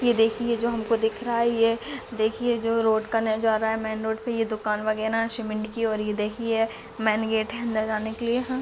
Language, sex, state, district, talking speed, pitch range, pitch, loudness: Hindi, female, Chhattisgarh, Bilaspur, 225 wpm, 220-230 Hz, 225 Hz, -25 LUFS